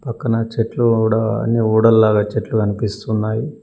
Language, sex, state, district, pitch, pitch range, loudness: Telugu, male, Telangana, Mahabubabad, 110 Hz, 110-115 Hz, -17 LUFS